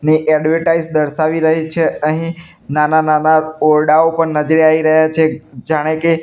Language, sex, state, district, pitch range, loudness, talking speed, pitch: Gujarati, male, Gujarat, Gandhinagar, 155-160 Hz, -13 LUFS, 155 wpm, 155 Hz